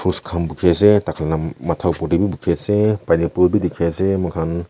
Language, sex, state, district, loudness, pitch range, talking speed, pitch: Nagamese, male, Nagaland, Kohima, -18 LUFS, 85-95 Hz, 190 wpm, 85 Hz